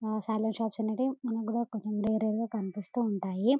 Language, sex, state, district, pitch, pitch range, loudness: Telugu, female, Telangana, Karimnagar, 220 Hz, 215-230 Hz, -32 LUFS